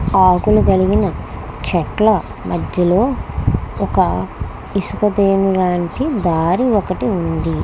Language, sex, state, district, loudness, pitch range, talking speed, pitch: Telugu, female, Andhra Pradesh, Krishna, -16 LUFS, 180-210 Hz, 80 wpm, 190 Hz